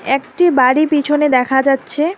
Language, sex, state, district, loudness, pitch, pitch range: Bengali, female, West Bengal, Alipurduar, -14 LUFS, 285 Hz, 265-305 Hz